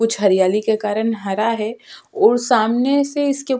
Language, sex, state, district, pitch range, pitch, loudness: Hindi, female, Uttarakhand, Tehri Garhwal, 215-265 Hz, 225 Hz, -18 LUFS